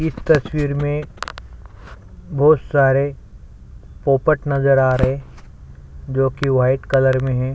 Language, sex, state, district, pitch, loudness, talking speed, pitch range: Hindi, male, Chhattisgarh, Sukma, 135 Hz, -18 LUFS, 120 wpm, 125-145 Hz